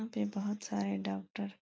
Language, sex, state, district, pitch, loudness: Hindi, female, Uttar Pradesh, Etah, 200 Hz, -37 LUFS